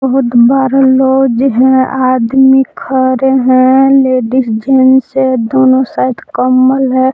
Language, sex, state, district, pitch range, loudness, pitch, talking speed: Hindi, female, Jharkhand, Palamu, 255-265 Hz, -9 LUFS, 260 Hz, 115 wpm